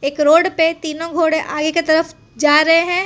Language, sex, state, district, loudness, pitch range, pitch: Hindi, female, Gujarat, Valsad, -15 LUFS, 305-335 Hz, 325 Hz